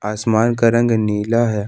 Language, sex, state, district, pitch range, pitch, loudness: Hindi, male, Jharkhand, Ranchi, 105-115 Hz, 115 Hz, -16 LUFS